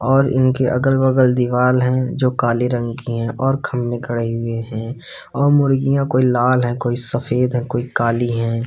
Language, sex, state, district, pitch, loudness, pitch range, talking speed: Hindi, male, Uttar Pradesh, Hamirpur, 125 Hz, -18 LUFS, 120-130 Hz, 180 wpm